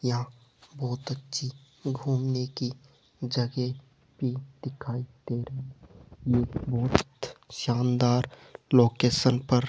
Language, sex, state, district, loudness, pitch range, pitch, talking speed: Hindi, male, Rajasthan, Jaipur, -29 LUFS, 125-135 Hz, 125 Hz, 100 wpm